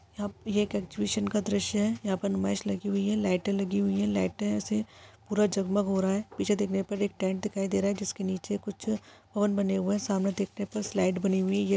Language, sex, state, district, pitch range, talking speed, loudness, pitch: Maithili, female, Bihar, Araria, 190-205 Hz, 240 wpm, -29 LUFS, 200 Hz